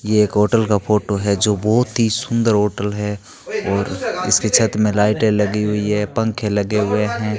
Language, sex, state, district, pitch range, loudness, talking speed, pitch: Hindi, male, Rajasthan, Bikaner, 105-110 Hz, -18 LUFS, 195 wpm, 105 Hz